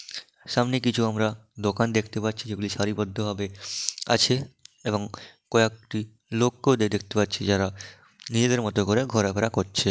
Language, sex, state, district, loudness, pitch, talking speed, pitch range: Bengali, male, West Bengal, Dakshin Dinajpur, -26 LUFS, 110 Hz, 135 wpm, 105-115 Hz